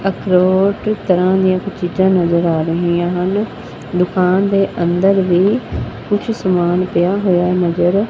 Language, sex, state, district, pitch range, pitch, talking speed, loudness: Punjabi, female, Punjab, Fazilka, 175-195 Hz, 185 Hz, 135 wpm, -15 LUFS